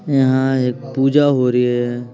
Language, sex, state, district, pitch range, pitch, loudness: Hindi, male, Bihar, Patna, 125-135 Hz, 130 Hz, -16 LUFS